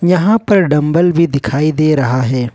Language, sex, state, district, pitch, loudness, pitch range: Hindi, male, Jharkhand, Ranchi, 155 Hz, -13 LUFS, 140-175 Hz